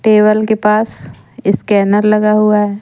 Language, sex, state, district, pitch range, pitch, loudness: Hindi, female, Madhya Pradesh, Umaria, 210-215 Hz, 210 Hz, -12 LUFS